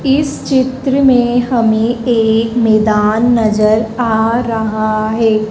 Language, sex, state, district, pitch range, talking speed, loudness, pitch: Hindi, female, Madhya Pradesh, Dhar, 220-245 Hz, 110 wpm, -13 LUFS, 225 Hz